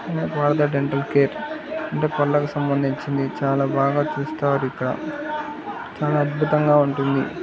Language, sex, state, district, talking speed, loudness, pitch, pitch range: Telugu, male, Andhra Pradesh, Guntur, 105 wpm, -22 LUFS, 145 Hz, 140-155 Hz